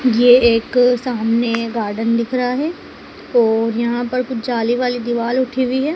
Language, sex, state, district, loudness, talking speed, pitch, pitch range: Hindi, female, Madhya Pradesh, Dhar, -17 LUFS, 170 wpm, 245 Hz, 230-250 Hz